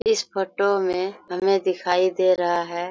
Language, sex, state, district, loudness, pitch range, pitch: Hindi, female, Jharkhand, Sahebganj, -22 LUFS, 180-195 Hz, 185 Hz